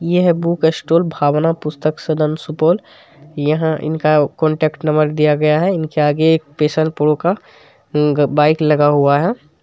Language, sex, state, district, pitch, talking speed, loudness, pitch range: Hindi, male, Bihar, Supaul, 155 Hz, 155 wpm, -16 LUFS, 150-160 Hz